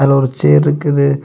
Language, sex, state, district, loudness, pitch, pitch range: Tamil, male, Tamil Nadu, Kanyakumari, -12 LUFS, 140 Hz, 130-140 Hz